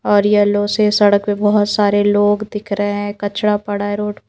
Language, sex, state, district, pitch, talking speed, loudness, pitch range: Hindi, female, Madhya Pradesh, Bhopal, 205 Hz, 225 wpm, -16 LUFS, 205-210 Hz